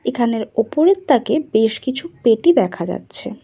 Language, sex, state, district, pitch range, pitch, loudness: Bengali, female, West Bengal, Cooch Behar, 225-310 Hz, 255 Hz, -17 LUFS